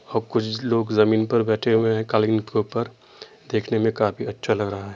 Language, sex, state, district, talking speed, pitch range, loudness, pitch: Hindi, male, Uttar Pradesh, Muzaffarnagar, 220 wpm, 110-115 Hz, -22 LUFS, 110 Hz